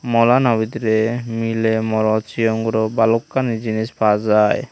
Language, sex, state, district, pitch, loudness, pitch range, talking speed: Chakma, male, Tripura, Unakoti, 110 Hz, -18 LUFS, 110-115 Hz, 140 wpm